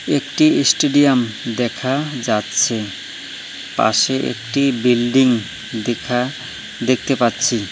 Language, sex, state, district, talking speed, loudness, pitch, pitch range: Bengali, male, West Bengal, Cooch Behar, 80 wpm, -17 LUFS, 125 Hz, 115-135 Hz